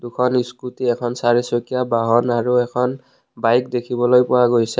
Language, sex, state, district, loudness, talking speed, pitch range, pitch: Assamese, male, Assam, Kamrup Metropolitan, -18 LUFS, 140 wpm, 120-125 Hz, 125 Hz